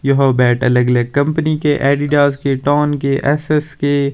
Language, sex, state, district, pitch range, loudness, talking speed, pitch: Hindi, male, Himachal Pradesh, Shimla, 135-145 Hz, -15 LUFS, 175 wpm, 145 Hz